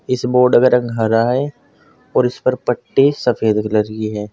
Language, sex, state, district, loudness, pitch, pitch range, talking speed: Hindi, male, Uttar Pradesh, Saharanpur, -16 LUFS, 120 Hz, 110-125 Hz, 195 wpm